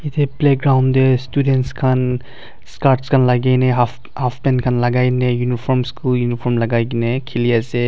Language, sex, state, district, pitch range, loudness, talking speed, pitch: Nagamese, male, Nagaland, Dimapur, 120-130 Hz, -17 LUFS, 150 wpm, 125 Hz